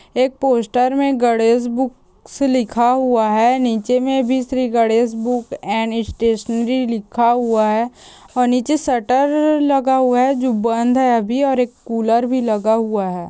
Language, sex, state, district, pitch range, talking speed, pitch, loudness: Hindi, female, Chhattisgarh, Korba, 230-260 Hz, 160 wpm, 245 Hz, -17 LUFS